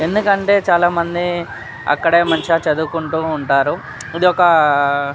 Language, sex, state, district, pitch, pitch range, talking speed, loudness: Telugu, male, Telangana, Nalgonda, 165 Hz, 150-175 Hz, 115 wpm, -16 LUFS